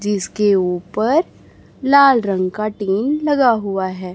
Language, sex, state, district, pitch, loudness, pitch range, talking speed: Hindi, male, Chhattisgarh, Raipur, 210 Hz, -17 LUFS, 190-260 Hz, 130 wpm